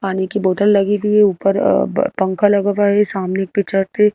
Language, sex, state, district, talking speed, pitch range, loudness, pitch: Hindi, female, Madhya Pradesh, Bhopal, 230 wpm, 195-205 Hz, -16 LUFS, 200 Hz